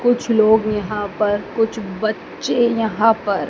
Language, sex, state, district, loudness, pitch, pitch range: Hindi, female, Madhya Pradesh, Dhar, -18 LUFS, 215 Hz, 205-225 Hz